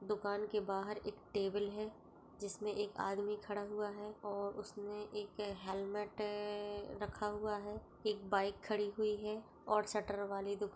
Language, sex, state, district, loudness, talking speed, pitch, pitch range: Hindi, female, Chhattisgarh, Jashpur, -41 LUFS, 155 wpm, 205 Hz, 205-210 Hz